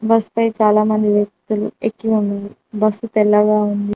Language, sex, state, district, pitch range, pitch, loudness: Telugu, female, Telangana, Mahabubabad, 210-220 Hz, 210 Hz, -17 LUFS